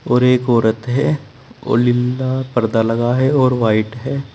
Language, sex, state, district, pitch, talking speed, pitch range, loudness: Hindi, male, Uttar Pradesh, Saharanpur, 125 Hz, 165 wpm, 120-130 Hz, -16 LUFS